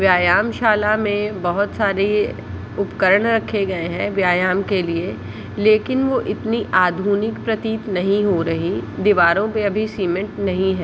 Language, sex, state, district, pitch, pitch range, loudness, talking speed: Hindi, female, Jharkhand, Sahebganj, 200 Hz, 180-210 Hz, -19 LUFS, 145 wpm